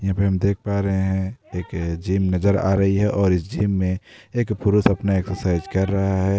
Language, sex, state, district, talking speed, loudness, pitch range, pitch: Hindi, male, Bihar, Darbhanga, 225 wpm, -21 LUFS, 95-100 Hz, 95 Hz